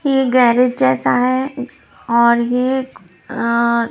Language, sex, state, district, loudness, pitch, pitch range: Hindi, female, Punjab, Pathankot, -15 LUFS, 245 Hz, 235-260 Hz